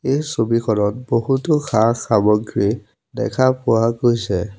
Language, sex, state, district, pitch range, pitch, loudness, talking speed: Assamese, male, Assam, Sonitpur, 105-130 Hz, 115 Hz, -18 LUFS, 90 wpm